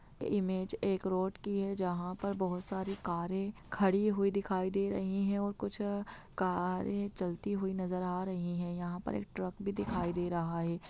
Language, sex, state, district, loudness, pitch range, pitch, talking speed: Hindi, female, Bihar, Muzaffarpur, -35 LUFS, 180-200 Hz, 190 Hz, 185 wpm